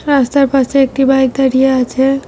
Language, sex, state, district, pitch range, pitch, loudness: Bengali, female, West Bengal, Cooch Behar, 265-275 Hz, 270 Hz, -12 LUFS